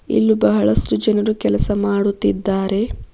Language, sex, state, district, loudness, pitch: Kannada, female, Karnataka, Bidar, -17 LUFS, 200 Hz